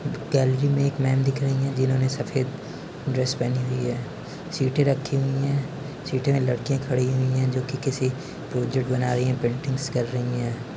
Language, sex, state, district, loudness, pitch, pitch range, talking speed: Hindi, male, Uttar Pradesh, Varanasi, -25 LUFS, 130 Hz, 125-140 Hz, 190 wpm